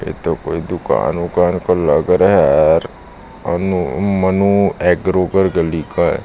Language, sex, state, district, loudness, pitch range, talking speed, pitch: Hindi, male, Chhattisgarh, Jashpur, -15 LUFS, 90-95 Hz, 155 wpm, 90 Hz